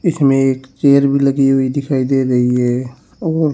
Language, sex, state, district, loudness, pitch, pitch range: Hindi, male, Haryana, Rohtak, -15 LUFS, 135 Hz, 130-140 Hz